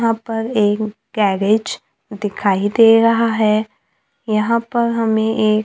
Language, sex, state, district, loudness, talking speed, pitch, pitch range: Hindi, male, Maharashtra, Gondia, -16 LUFS, 125 wpm, 220 Hz, 215-230 Hz